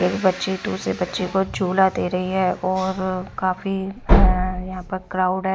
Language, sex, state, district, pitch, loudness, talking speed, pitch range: Hindi, female, Haryana, Rohtak, 185 Hz, -22 LUFS, 175 wpm, 185-190 Hz